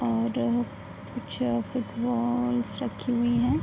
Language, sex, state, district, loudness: Hindi, female, Bihar, Sitamarhi, -28 LUFS